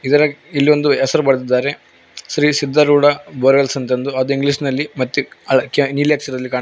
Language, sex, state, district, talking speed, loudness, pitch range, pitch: Kannada, male, Karnataka, Koppal, 170 wpm, -16 LUFS, 130-145 Hz, 140 Hz